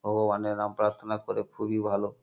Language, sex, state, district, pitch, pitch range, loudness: Bengali, male, West Bengal, North 24 Parganas, 105 Hz, 105-110 Hz, -29 LUFS